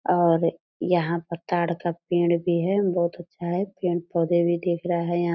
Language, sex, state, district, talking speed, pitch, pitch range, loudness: Hindi, female, Bihar, Purnia, 215 wpm, 175 Hz, 170-175 Hz, -24 LUFS